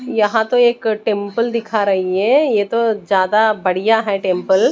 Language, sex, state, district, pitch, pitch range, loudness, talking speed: Hindi, female, Odisha, Nuapada, 215 Hz, 195-230 Hz, -16 LUFS, 180 wpm